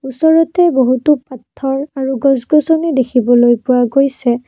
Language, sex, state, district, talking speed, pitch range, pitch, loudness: Assamese, female, Assam, Kamrup Metropolitan, 105 wpm, 250-300 Hz, 270 Hz, -13 LUFS